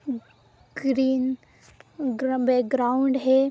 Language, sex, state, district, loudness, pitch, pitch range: Hindi, female, Bihar, Jamui, -24 LUFS, 260 Hz, 255-265 Hz